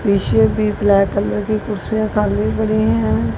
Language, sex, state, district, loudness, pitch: Hindi, female, Punjab, Kapurthala, -17 LUFS, 200 Hz